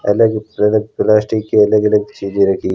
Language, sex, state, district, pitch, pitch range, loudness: Hindi, female, Rajasthan, Bikaner, 105 Hz, 105-110 Hz, -14 LUFS